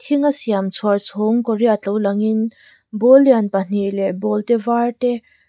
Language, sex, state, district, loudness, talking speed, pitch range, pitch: Mizo, female, Mizoram, Aizawl, -17 LUFS, 175 wpm, 200-240 Hz, 220 Hz